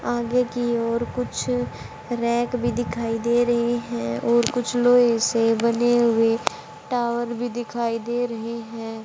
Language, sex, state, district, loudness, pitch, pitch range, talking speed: Hindi, female, Haryana, Rohtak, -23 LUFS, 235 Hz, 225-240 Hz, 145 wpm